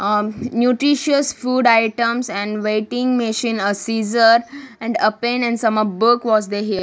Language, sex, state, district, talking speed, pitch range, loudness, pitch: English, female, Maharashtra, Gondia, 165 wpm, 215-245 Hz, -18 LUFS, 230 Hz